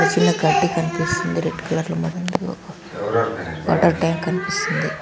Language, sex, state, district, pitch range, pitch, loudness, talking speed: Telugu, male, Andhra Pradesh, Anantapur, 115-175 Hz, 165 Hz, -21 LUFS, 95 wpm